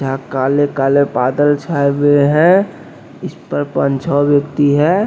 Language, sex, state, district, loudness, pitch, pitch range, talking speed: Hindi, male, Bihar, West Champaran, -14 LUFS, 145 Hz, 135-145 Hz, 130 wpm